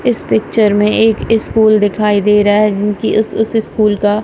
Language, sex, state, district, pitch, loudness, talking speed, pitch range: Hindi, female, Punjab, Kapurthala, 210 Hz, -12 LUFS, 195 wpm, 205-220 Hz